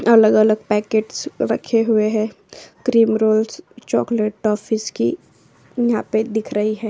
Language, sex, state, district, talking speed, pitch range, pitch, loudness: Hindi, female, Maharashtra, Chandrapur, 140 wpm, 215-225 Hz, 220 Hz, -19 LUFS